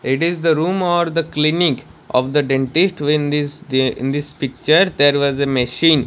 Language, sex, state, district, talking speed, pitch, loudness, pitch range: English, male, Odisha, Malkangiri, 195 wpm, 150 Hz, -17 LUFS, 135-165 Hz